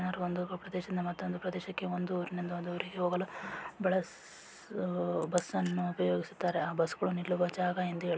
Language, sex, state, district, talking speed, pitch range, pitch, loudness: Kannada, female, Karnataka, Raichur, 175 wpm, 175-180 Hz, 180 Hz, -35 LUFS